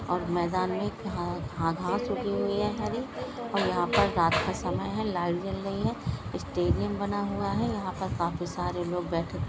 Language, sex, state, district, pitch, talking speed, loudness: Hindi, female, Maharashtra, Pune, 170 Hz, 195 wpm, -30 LUFS